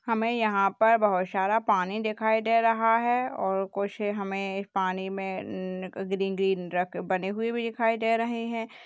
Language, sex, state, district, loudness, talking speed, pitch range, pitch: Hindi, female, Bihar, Jahanabad, -27 LUFS, 175 wpm, 190-225 Hz, 205 Hz